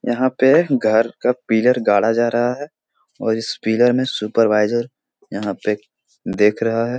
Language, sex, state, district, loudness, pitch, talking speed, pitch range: Hindi, male, Bihar, Jahanabad, -18 LUFS, 115 Hz, 165 wpm, 110-125 Hz